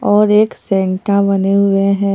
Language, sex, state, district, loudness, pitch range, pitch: Hindi, female, Bihar, Katihar, -13 LUFS, 195-205 Hz, 200 Hz